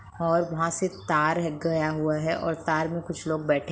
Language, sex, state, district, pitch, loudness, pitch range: Hindi, female, Bihar, Begusarai, 165 Hz, -27 LUFS, 155-165 Hz